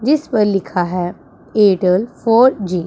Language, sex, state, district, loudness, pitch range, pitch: Hindi, female, Punjab, Pathankot, -15 LUFS, 180-230 Hz, 200 Hz